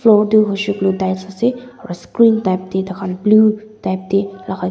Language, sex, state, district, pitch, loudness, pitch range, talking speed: Nagamese, female, Nagaland, Dimapur, 195 Hz, -16 LUFS, 190-215 Hz, 180 wpm